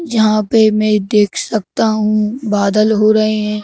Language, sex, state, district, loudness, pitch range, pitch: Hindi, male, Madhya Pradesh, Bhopal, -14 LUFS, 210-220 Hz, 215 Hz